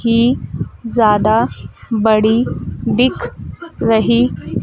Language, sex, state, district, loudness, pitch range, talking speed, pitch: Hindi, female, Madhya Pradesh, Dhar, -15 LUFS, 220-240 Hz, 65 wpm, 230 Hz